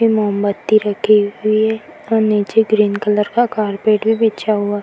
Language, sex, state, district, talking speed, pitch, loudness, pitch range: Hindi, female, Bihar, Jahanabad, 185 wpm, 215 Hz, -15 LUFS, 205-220 Hz